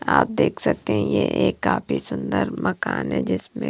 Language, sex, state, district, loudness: Hindi, female, Punjab, Kapurthala, -22 LUFS